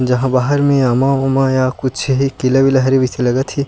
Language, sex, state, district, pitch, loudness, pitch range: Chhattisgarhi, male, Chhattisgarh, Sukma, 130 Hz, -14 LUFS, 130-135 Hz